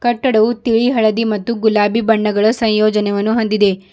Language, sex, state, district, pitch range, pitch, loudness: Kannada, female, Karnataka, Bidar, 210-230 Hz, 220 Hz, -15 LUFS